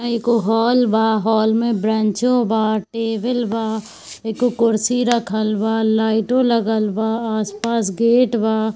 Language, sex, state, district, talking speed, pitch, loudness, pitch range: Hindi, female, Bihar, Darbhanga, 130 wpm, 225 Hz, -18 LUFS, 220-235 Hz